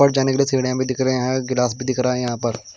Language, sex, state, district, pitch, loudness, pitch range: Hindi, male, Himachal Pradesh, Shimla, 130 Hz, -20 LUFS, 125-130 Hz